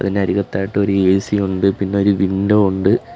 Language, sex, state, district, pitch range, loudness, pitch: Malayalam, male, Kerala, Kollam, 95-100 Hz, -16 LUFS, 100 Hz